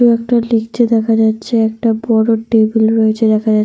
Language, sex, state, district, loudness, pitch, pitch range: Bengali, female, Jharkhand, Sahebganj, -13 LUFS, 225 Hz, 220-230 Hz